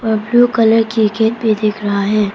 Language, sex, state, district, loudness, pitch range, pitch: Hindi, female, Arunachal Pradesh, Papum Pare, -14 LUFS, 210-225 Hz, 220 Hz